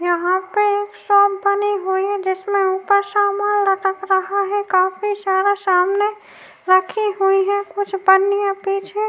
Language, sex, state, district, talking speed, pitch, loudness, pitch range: Hindi, female, Uttar Pradesh, Jyotiba Phule Nagar, 150 wpm, 395 Hz, -18 LUFS, 385-405 Hz